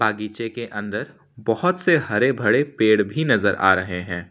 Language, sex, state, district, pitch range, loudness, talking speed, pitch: Hindi, male, Jharkhand, Ranchi, 105-135 Hz, -21 LUFS, 180 wpm, 110 Hz